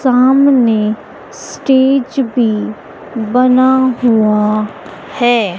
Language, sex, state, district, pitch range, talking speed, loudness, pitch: Hindi, female, Madhya Pradesh, Dhar, 215-260 Hz, 65 wpm, -12 LUFS, 245 Hz